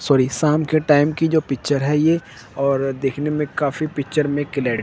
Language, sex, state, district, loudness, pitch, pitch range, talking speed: Hindi, male, Chandigarh, Chandigarh, -19 LUFS, 145 Hz, 135-155 Hz, 210 wpm